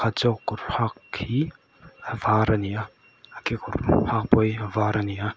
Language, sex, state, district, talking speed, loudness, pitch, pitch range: Mizo, male, Mizoram, Aizawl, 210 wpm, -25 LUFS, 110 Hz, 105-115 Hz